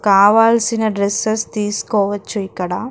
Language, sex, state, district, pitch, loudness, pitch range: Telugu, female, Telangana, Karimnagar, 210 Hz, -16 LUFS, 200-225 Hz